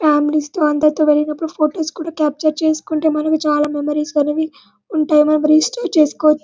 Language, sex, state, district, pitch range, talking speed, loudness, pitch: Telugu, female, Telangana, Karimnagar, 300-315 Hz, 160 wpm, -16 LUFS, 305 Hz